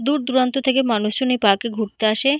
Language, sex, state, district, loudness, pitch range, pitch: Bengali, female, West Bengal, Paschim Medinipur, -19 LUFS, 220-270 Hz, 250 Hz